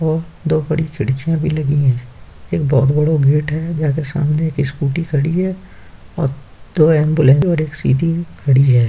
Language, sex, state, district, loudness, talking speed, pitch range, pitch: Hindi, male, Uttar Pradesh, Jyotiba Phule Nagar, -16 LUFS, 175 wpm, 135-160 Hz, 150 Hz